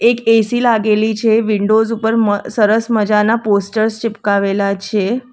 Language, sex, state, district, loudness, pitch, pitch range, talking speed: Gujarati, female, Gujarat, Valsad, -14 LUFS, 220 Hz, 210-225 Hz, 125 wpm